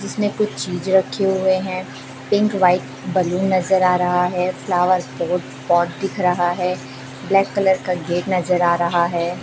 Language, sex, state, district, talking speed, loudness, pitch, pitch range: Hindi, female, Chhattisgarh, Raipur, 170 wpm, -19 LUFS, 180 Hz, 175-190 Hz